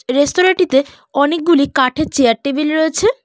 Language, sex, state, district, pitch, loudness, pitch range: Bengali, female, West Bengal, Cooch Behar, 290 Hz, -14 LUFS, 280-335 Hz